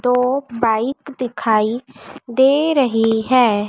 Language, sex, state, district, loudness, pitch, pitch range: Hindi, female, Madhya Pradesh, Dhar, -17 LUFS, 250 Hz, 225-270 Hz